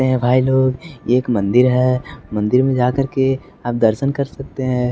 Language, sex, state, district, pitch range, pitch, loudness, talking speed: Hindi, male, Bihar, West Champaran, 125-130 Hz, 130 Hz, -17 LUFS, 195 wpm